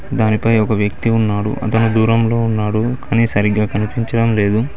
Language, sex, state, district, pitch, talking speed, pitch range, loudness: Telugu, male, Telangana, Mahabubabad, 110 Hz, 140 wpm, 105-115 Hz, -16 LUFS